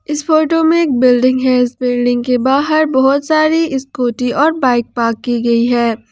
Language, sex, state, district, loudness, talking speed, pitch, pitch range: Hindi, female, Jharkhand, Ranchi, -13 LUFS, 175 wpm, 255 Hz, 245-300 Hz